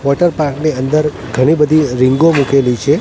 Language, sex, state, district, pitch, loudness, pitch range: Gujarati, male, Gujarat, Gandhinagar, 145 Hz, -13 LUFS, 135-155 Hz